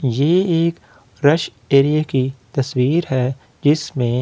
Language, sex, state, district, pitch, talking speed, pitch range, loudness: Hindi, male, Delhi, New Delhi, 140 Hz, 115 wpm, 130-155 Hz, -18 LUFS